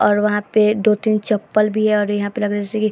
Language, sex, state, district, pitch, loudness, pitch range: Hindi, female, Bihar, Vaishali, 210 Hz, -18 LUFS, 205-215 Hz